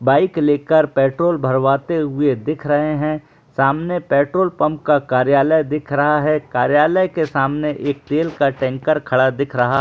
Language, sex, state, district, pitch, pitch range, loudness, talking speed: Hindi, male, Jharkhand, Jamtara, 145 Hz, 135-155 Hz, -17 LUFS, 165 wpm